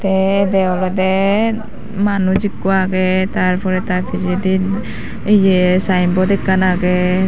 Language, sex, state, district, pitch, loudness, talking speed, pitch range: Chakma, female, Tripura, Dhalai, 190 Hz, -15 LUFS, 105 wpm, 185-195 Hz